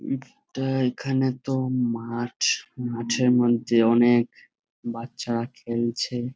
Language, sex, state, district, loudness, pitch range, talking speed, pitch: Bengali, male, West Bengal, Jhargram, -24 LUFS, 120-130 Hz, 85 wpm, 120 Hz